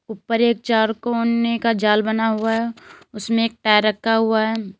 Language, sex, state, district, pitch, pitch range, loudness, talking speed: Hindi, female, Uttar Pradesh, Lalitpur, 225 Hz, 220-230 Hz, -19 LUFS, 185 wpm